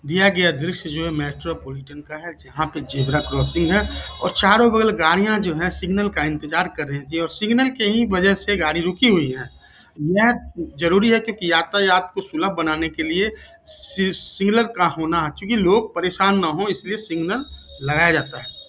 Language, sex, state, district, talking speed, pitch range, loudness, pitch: Hindi, male, Bihar, Samastipur, 195 wpm, 155-200 Hz, -19 LUFS, 175 Hz